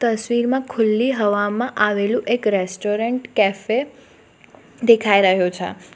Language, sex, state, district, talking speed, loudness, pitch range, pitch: Gujarati, female, Gujarat, Valsad, 100 wpm, -19 LUFS, 205-240 Hz, 220 Hz